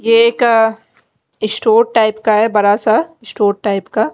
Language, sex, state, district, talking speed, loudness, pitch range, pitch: Hindi, female, Delhi, New Delhi, 160 wpm, -13 LUFS, 215-230 Hz, 220 Hz